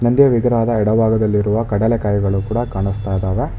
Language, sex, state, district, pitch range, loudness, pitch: Kannada, male, Karnataka, Bangalore, 100-115 Hz, -17 LUFS, 110 Hz